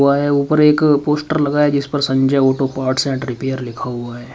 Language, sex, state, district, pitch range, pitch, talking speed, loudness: Hindi, male, Uttar Pradesh, Shamli, 130-145 Hz, 140 Hz, 220 wpm, -16 LUFS